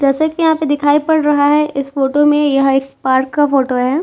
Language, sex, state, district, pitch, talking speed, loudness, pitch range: Hindi, female, Uttar Pradesh, Etah, 290 Hz, 255 wpm, -14 LUFS, 270-295 Hz